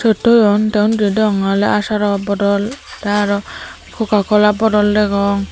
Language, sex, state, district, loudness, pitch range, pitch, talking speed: Chakma, female, Tripura, Dhalai, -15 LUFS, 200-215 Hz, 210 Hz, 140 wpm